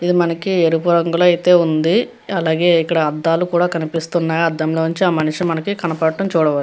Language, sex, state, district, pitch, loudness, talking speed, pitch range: Telugu, female, Andhra Pradesh, Guntur, 165 Hz, -16 LUFS, 170 wpm, 160-175 Hz